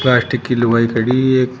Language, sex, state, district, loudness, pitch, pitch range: Hindi, male, Uttar Pradesh, Shamli, -15 LUFS, 125 Hz, 120-130 Hz